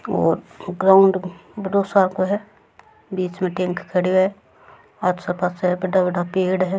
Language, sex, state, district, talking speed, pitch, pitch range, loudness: Rajasthani, female, Rajasthan, Churu, 150 wpm, 185 Hz, 180-190 Hz, -20 LUFS